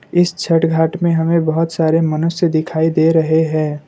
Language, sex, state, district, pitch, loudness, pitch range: Hindi, male, Assam, Kamrup Metropolitan, 160 Hz, -15 LUFS, 160-165 Hz